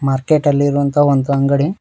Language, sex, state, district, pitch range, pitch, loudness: Kannada, male, Karnataka, Koppal, 140-145 Hz, 140 Hz, -15 LUFS